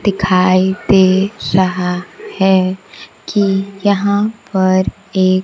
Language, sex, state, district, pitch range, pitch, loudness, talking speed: Hindi, female, Bihar, Kaimur, 185-200 Hz, 190 Hz, -14 LUFS, 100 wpm